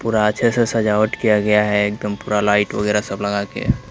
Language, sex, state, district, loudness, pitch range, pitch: Hindi, male, Bihar, Kaimur, -18 LUFS, 105-110 Hz, 105 Hz